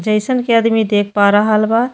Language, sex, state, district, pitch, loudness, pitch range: Bhojpuri, female, Uttar Pradesh, Ghazipur, 215 Hz, -14 LUFS, 210-230 Hz